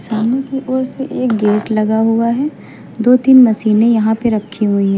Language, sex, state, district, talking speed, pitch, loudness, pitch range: Hindi, female, Uttar Pradesh, Lucknow, 205 wpm, 225 Hz, -14 LUFS, 215-255 Hz